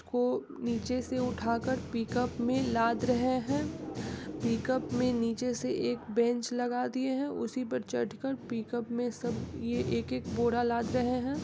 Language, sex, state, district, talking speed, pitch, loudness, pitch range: Hindi, female, Bihar, East Champaran, 165 wpm, 245 Hz, -32 LUFS, 230-250 Hz